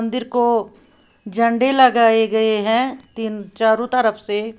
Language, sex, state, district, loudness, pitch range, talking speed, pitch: Hindi, female, Uttar Pradesh, Lalitpur, -17 LUFS, 220-245 Hz, 130 wpm, 225 Hz